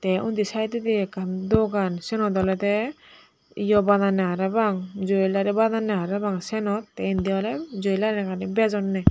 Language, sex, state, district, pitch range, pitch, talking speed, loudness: Chakma, female, Tripura, Dhalai, 190-215 Hz, 205 Hz, 125 wpm, -24 LUFS